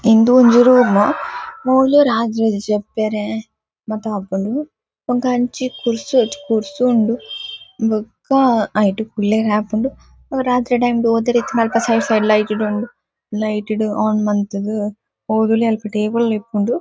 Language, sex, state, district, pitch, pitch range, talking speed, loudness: Tulu, female, Karnataka, Dakshina Kannada, 220 Hz, 210-245 Hz, 140 wpm, -17 LUFS